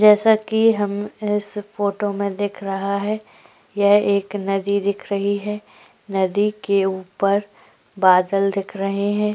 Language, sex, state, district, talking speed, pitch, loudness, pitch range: Hindi, female, Goa, North and South Goa, 140 wpm, 200 Hz, -20 LUFS, 195-210 Hz